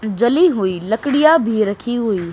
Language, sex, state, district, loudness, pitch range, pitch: Hindi, male, Haryana, Charkhi Dadri, -16 LUFS, 205-275 Hz, 220 Hz